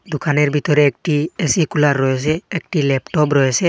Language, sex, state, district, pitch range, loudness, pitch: Bengali, male, Assam, Hailakandi, 140-155 Hz, -17 LUFS, 150 Hz